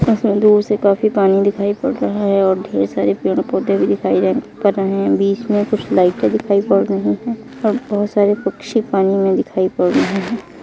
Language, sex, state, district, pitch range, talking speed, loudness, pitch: Hindi, female, Uttar Pradesh, Etah, 195-215 Hz, 210 wpm, -16 LUFS, 200 Hz